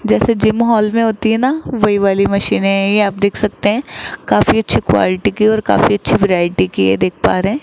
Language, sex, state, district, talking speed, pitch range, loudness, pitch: Hindi, male, Rajasthan, Jaipur, 235 wpm, 195-220 Hz, -14 LUFS, 210 Hz